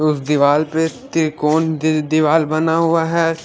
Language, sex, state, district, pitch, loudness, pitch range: Hindi, female, Haryana, Charkhi Dadri, 155 Hz, -16 LUFS, 155-160 Hz